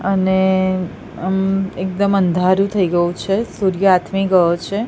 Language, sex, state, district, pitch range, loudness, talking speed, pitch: Gujarati, female, Gujarat, Gandhinagar, 185-195 Hz, -17 LUFS, 135 wpm, 190 Hz